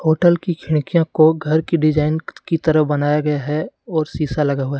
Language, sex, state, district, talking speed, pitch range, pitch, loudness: Hindi, male, Jharkhand, Deoghar, 210 wpm, 150-160 Hz, 155 Hz, -18 LUFS